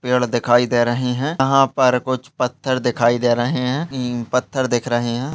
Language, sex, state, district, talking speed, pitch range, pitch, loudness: Hindi, male, Goa, North and South Goa, 200 wpm, 120-130 Hz, 125 Hz, -19 LUFS